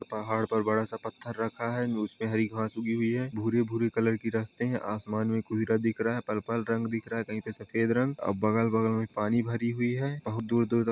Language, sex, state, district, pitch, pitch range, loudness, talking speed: Hindi, male, Jharkhand, Sahebganj, 115 Hz, 110-115 Hz, -30 LUFS, 215 wpm